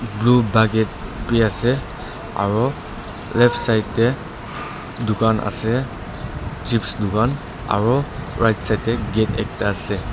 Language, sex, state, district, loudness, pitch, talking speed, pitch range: Nagamese, male, Nagaland, Dimapur, -20 LUFS, 110 Hz, 110 wpm, 105-120 Hz